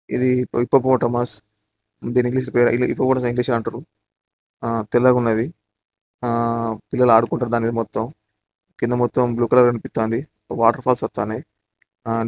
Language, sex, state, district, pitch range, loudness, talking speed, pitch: Telugu, male, Andhra Pradesh, Srikakulam, 115-125 Hz, -20 LUFS, 135 wpm, 120 Hz